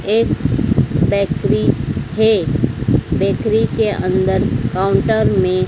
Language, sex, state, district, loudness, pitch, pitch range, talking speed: Hindi, female, Madhya Pradesh, Dhar, -16 LUFS, 185 Hz, 140-205 Hz, 85 wpm